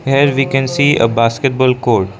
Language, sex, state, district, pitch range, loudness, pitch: English, male, Arunachal Pradesh, Lower Dibang Valley, 115-135 Hz, -13 LUFS, 130 Hz